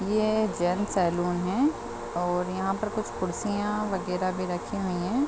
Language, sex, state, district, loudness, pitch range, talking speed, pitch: Hindi, female, Chhattisgarh, Bilaspur, -28 LUFS, 180-215 Hz, 160 wpm, 190 Hz